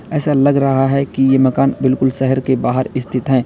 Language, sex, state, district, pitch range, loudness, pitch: Hindi, male, Uttar Pradesh, Lalitpur, 130-135 Hz, -15 LUFS, 135 Hz